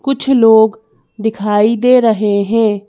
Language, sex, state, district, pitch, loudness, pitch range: Hindi, female, Madhya Pradesh, Bhopal, 220 Hz, -12 LUFS, 210-230 Hz